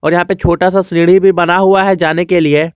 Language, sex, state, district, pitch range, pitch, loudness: Hindi, male, Jharkhand, Garhwa, 170-190 Hz, 175 Hz, -10 LUFS